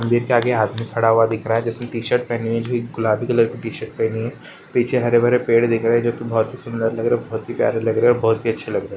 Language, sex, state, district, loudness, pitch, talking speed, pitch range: Hindi, male, Uttar Pradesh, Ghazipur, -19 LUFS, 115 Hz, 310 wpm, 115-120 Hz